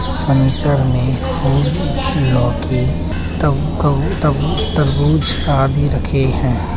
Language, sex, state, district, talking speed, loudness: Hindi, male, Uttar Pradesh, Budaun, 90 wpm, -16 LUFS